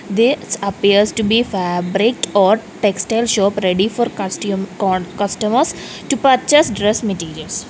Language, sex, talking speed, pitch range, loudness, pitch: English, female, 130 wpm, 195-230 Hz, -16 LUFS, 205 Hz